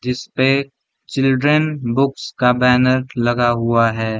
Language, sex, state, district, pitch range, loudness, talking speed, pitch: Hindi, male, Bihar, Gaya, 120-135 Hz, -17 LUFS, 130 wpm, 125 Hz